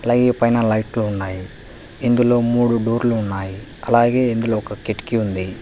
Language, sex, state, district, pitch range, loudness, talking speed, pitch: Telugu, male, Telangana, Hyderabad, 105-120 Hz, -19 LUFS, 140 wpm, 115 Hz